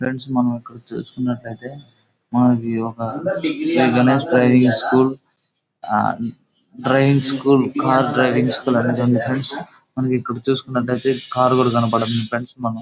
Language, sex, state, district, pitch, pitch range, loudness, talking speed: Telugu, male, Andhra Pradesh, Guntur, 125 Hz, 120-130 Hz, -18 LUFS, 115 wpm